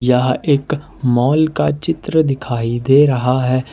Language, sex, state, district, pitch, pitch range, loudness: Hindi, male, Jharkhand, Ranchi, 135 Hz, 125-150 Hz, -16 LUFS